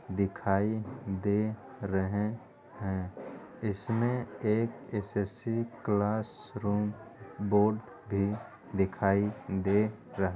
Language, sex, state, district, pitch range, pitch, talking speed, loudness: Hindi, male, Uttar Pradesh, Ghazipur, 100-110 Hz, 105 Hz, 85 wpm, -32 LUFS